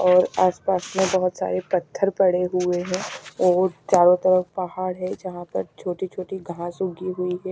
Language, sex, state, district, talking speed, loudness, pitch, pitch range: Hindi, female, Chhattisgarh, Raipur, 175 wpm, -23 LUFS, 185 Hz, 180-185 Hz